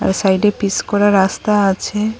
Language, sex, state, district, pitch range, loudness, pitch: Bengali, female, Assam, Hailakandi, 195-210 Hz, -15 LUFS, 205 Hz